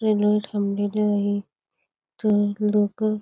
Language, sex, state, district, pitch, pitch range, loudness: Marathi, female, Karnataka, Belgaum, 210 Hz, 205-210 Hz, -23 LUFS